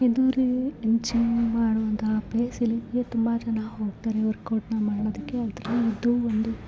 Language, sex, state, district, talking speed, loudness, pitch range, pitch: Kannada, female, Karnataka, Raichur, 125 wpm, -26 LUFS, 220-240 Hz, 230 Hz